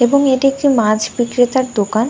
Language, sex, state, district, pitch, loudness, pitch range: Bengali, female, West Bengal, Dakshin Dinajpur, 245 Hz, -15 LUFS, 225-265 Hz